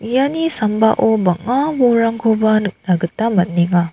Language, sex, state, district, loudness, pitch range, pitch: Garo, female, Meghalaya, South Garo Hills, -16 LUFS, 180-235 Hz, 220 Hz